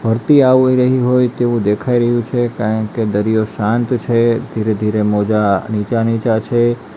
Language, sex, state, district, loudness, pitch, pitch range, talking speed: Gujarati, male, Gujarat, Valsad, -15 LUFS, 115 Hz, 110-120 Hz, 145 wpm